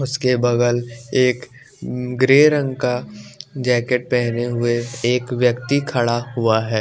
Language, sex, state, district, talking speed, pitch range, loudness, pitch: Hindi, male, Bihar, West Champaran, 125 wpm, 120-130 Hz, -19 LUFS, 125 Hz